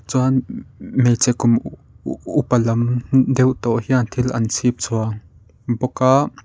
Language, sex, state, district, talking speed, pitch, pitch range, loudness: Mizo, male, Mizoram, Aizawl, 120 wpm, 125 Hz, 115-130 Hz, -18 LUFS